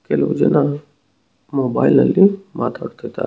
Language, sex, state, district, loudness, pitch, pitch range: Kannada, male, Karnataka, Shimoga, -17 LUFS, 150 Hz, 145-195 Hz